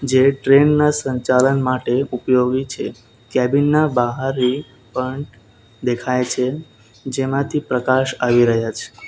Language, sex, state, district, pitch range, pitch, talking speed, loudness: Gujarati, male, Gujarat, Valsad, 125-135 Hz, 130 Hz, 105 wpm, -18 LUFS